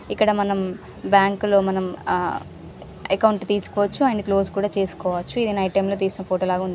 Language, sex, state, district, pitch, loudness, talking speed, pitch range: Telugu, female, Andhra Pradesh, Srikakulam, 195 Hz, -22 LUFS, 170 wpm, 190-205 Hz